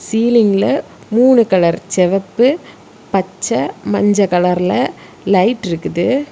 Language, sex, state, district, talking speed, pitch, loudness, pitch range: Tamil, female, Tamil Nadu, Kanyakumari, 85 wpm, 205 Hz, -15 LUFS, 185-245 Hz